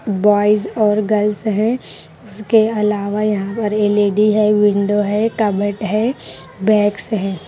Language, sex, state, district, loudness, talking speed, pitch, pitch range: Hindi, female, Haryana, Rohtak, -16 LUFS, 145 wpm, 210 Hz, 205-215 Hz